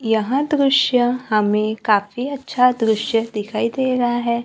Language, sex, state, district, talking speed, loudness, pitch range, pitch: Hindi, female, Maharashtra, Gondia, 135 wpm, -18 LUFS, 220-255 Hz, 235 Hz